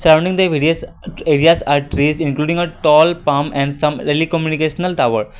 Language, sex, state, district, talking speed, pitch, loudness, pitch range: English, male, Assam, Kamrup Metropolitan, 165 wpm, 155 Hz, -15 LUFS, 145-165 Hz